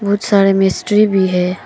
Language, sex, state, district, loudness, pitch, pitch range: Hindi, female, Arunachal Pradesh, Papum Pare, -13 LUFS, 195 Hz, 190-205 Hz